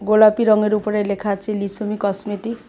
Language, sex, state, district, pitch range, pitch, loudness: Bengali, female, Tripura, West Tripura, 205-215 Hz, 210 Hz, -19 LUFS